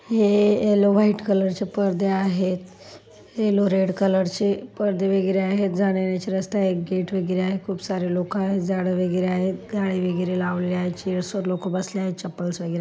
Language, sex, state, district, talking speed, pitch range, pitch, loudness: Marathi, female, Maharashtra, Solapur, 185 wpm, 185-200 Hz, 190 Hz, -23 LUFS